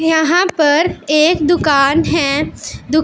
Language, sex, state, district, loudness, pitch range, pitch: Hindi, female, Punjab, Pathankot, -13 LUFS, 295-335 Hz, 315 Hz